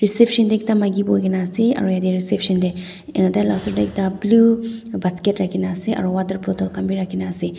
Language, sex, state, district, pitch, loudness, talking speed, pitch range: Nagamese, female, Nagaland, Dimapur, 190 Hz, -19 LUFS, 230 wpm, 180-210 Hz